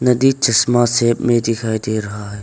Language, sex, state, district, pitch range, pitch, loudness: Hindi, male, Arunachal Pradesh, Longding, 110-120 Hz, 120 Hz, -16 LUFS